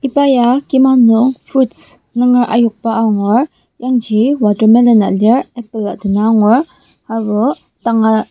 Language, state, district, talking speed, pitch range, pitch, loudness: Ao, Nagaland, Dimapur, 125 wpm, 220-255 Hz, 235 Hz, -12 LUFS